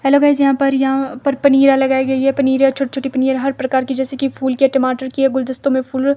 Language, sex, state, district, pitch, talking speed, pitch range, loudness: Hindi, female, Himachal Pradesh, Shimla, 270 Hz, 260 wpm, 265-275 Hz, -15 LUFS